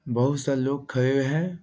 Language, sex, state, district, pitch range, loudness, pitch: Hindi, male, Bihar, Vaishali, 130-145 Hz, -25 LUFS, 135 Hz